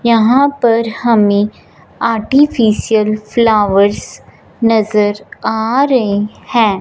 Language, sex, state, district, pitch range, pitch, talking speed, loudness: Hindi, male, Punjab, Fazilka, 210-235 Hz, 225 Hz, 80 wpm, -13 LUFS